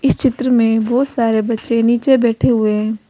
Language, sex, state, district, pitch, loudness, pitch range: Hindi, female, Uttar Pradesh, Saharanpur, 230 Hz, -15 LUFS, 220-255 Hz